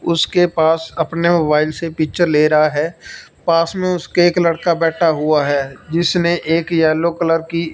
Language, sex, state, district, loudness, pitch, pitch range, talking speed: Hindi, male, Punjab, Fazilka, -16 LUFS, 165 Hz, 155-170 Hz, 170 wpm